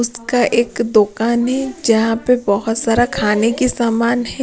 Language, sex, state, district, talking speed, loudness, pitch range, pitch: Hindi, female, Punjab, Pathankot, 160 wpm, -16 LUFS, 225-245 Hz, 235 Hz